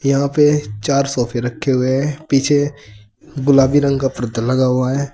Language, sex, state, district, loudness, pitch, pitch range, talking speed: Hindi, male, Uttar Pradesh, Saharanpur, -16 LUFS, 135 Hz, 125-140 Hz, 175 wpm